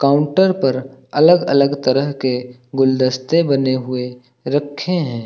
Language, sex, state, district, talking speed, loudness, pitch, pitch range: Hindi, male, Uttar Pradesh, Lucknow, 125 wpm, -17 LUFS, 135 Hz, 130-145 Hz